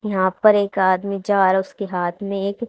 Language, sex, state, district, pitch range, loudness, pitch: Hindi, female, Haryana, Charkhi Dadri, 190-205 Hz, -19 LUFS, 195 Hz